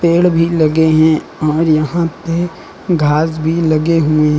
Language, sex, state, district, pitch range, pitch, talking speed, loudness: Hindi, male, Uttar Pradesh, Lucknow, 155-170 Hz, 160 Hz, 150 wpm, -14 LUFS